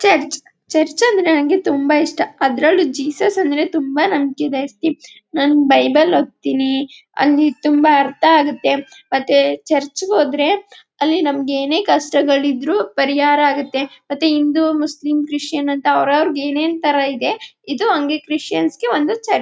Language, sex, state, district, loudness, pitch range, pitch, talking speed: Kannada, female, Karnataka, Chamarajanagar, -16 LUFS, 280-315 Hz, 295 Hz, 135 wpm